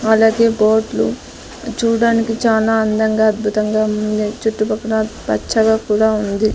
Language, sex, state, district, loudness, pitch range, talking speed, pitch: Telugu, female, Andhra Pradesh, Sri Satya Sai, -16 LUFS, 215-220 Hz, 110 wpm, 220 Hz